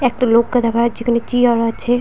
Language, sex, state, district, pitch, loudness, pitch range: Bengali, female, West Bengal, Purulia, 235 Hz, -16 LUFS, 230-245 Hz